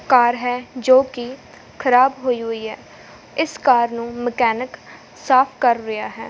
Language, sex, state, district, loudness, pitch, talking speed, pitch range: Punjabi, female, Punjab, Fazilka, -18 LUFS, 245 Hz, 150 wpm, 235-260 Hz